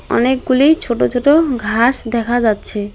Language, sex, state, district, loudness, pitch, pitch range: Bengali, female, West Bengal, Alipurduar, -14 LUFS, 240 Hz, 225-265 Hz